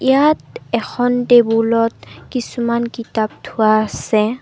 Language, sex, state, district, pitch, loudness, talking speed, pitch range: Assamese, female, Assam, Kamrup Metropolitan, 235 Hz, -17 LUFS, 95 wpm, 225-245 Hz